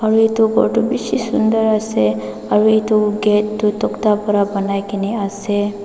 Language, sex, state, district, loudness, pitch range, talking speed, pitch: Nagamese, female, Nagaland, Dimapur, -17 LUFS, 200-215 Hz, 165 wpm, 210 Hz